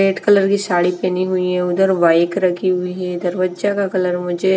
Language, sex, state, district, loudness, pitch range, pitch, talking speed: Hindi, female, Bihar, West Champaran, -17 LUFS, 180-190 Hz, 185 Hz, 235 wpm